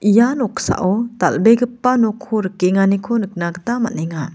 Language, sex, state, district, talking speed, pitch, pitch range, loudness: Garo, female, Meghalaya, West Garo Hills, 110 wpm, 215 Hz, 185-235 Hz, -17 LUFS